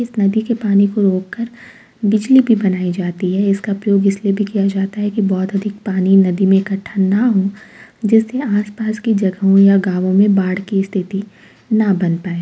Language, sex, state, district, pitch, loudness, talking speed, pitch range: Hindi, female, Uttar Pradesh, Varanasi, 200 Hz, -16 LUFS, 200 wpm, 195-210 Hz